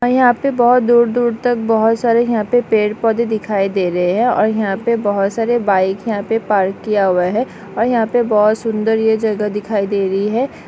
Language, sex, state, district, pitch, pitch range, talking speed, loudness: Hindi, female, Maharashtra, Solapur, 220 Hz, 205-235 Hz, 220 wpm, -15 LUFS